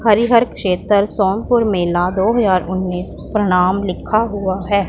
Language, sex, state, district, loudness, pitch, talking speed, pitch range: Hindi, female, Punjab, Pathankot, -16 LUFS, 195 Hz, 135 wpm, 185-215 Hz